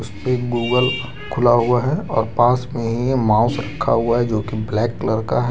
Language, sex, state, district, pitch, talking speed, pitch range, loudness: Hindi, male, Jharkhand, Deoghar, 120 Hz, 195 wpm, 115-125 Hz, -19 LUFS